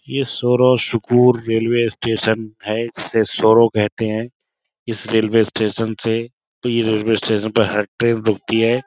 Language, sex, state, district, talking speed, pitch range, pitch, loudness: Hindi, male, Uttar Pradesh, Budaun, 140 wpm, 110-115 Hz, 115 Hz, -18 LUFS